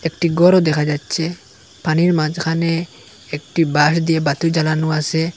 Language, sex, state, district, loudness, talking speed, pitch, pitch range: Bengali, male, Assam, Hailakandi, -17 LUFS, 135 wpm, 160 Hz, 150-165 Hz